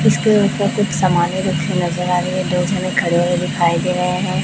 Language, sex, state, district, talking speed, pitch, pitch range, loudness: Hindi, male, Chhattisgarh, Raipur, 245 wpm, 180 Hz, 175-190 Hz, -17 LUFS